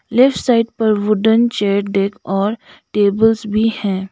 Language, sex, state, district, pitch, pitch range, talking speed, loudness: Hindi, female, Sikkim, Gangtok, 215 Hz, 200-225 Hz, 145 wpm, -16 LUFS